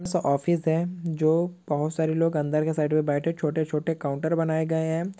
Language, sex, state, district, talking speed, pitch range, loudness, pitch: Hindi, male, Uttar Pradesh, Hamirpur, 195 wpm, 155-165 Hz, -25 LUFS, 160 Hz